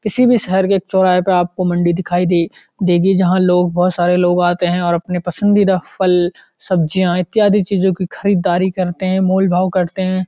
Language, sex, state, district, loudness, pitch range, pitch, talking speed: Hindi, male, Uttarakhand, Uttarkashi, -15 LUFS, 175-190 Hz, 185 Hz, 200 wpm